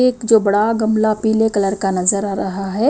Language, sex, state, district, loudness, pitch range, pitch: Hindi, female, Himachal Pradesh, Shimla, -16 LUFS, 200-220 Hz, 215 Hz